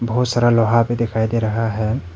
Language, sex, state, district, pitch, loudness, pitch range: Hindi, male, Arunachal Pradesh, Papum Pare, 115 Hz, -18 LUFS, 110-120 Hz